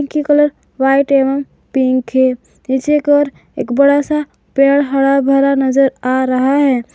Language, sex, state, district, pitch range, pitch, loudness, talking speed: Hindi, female, Jharkhand, Garhwa, 265-285 Hz, 275 Hz, -14 LUFS, 165 wpm